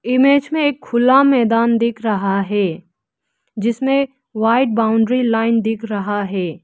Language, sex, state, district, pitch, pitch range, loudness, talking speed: Hindi, female, Arunachal Pradesh, Lower Dibang Valley, 230 Hz, 205-255 Hz, -16 LUFS, 135 wpm